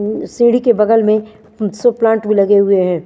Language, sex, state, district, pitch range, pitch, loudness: Hindi, female, Chandigarh, Chandigarh, 205-225 Hz, 215 Hz, -13 LUFS